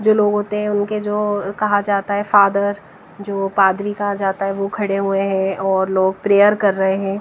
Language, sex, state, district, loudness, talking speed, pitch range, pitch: Hindi, female, Bihar, West Champaran, -17 LUFS, 210 wpm, 195-205 Hz, 200 Hz